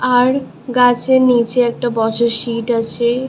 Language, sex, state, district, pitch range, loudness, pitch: Bengali, female, West Bengal, Malda, 235-250 Hz, -15 LUFS, 240 Hz